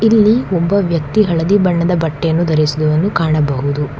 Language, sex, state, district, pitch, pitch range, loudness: Kannada, female, Karnataka, Bangalore, 170 Hz, 155-195 Hz, -14 LUFS